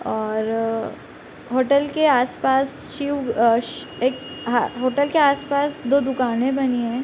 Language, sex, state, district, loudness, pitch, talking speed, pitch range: Hindi, female, Bihar, Sitamarhi, -21 LUFS, 255 Hz, 145 wpm, 235-280 Hz